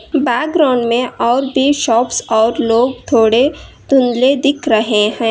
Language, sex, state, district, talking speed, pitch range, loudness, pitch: Hindi, female, Karnataka, Bangalore, 135 wpm, 230-280 Hz, -13 LUFS, 250 Hz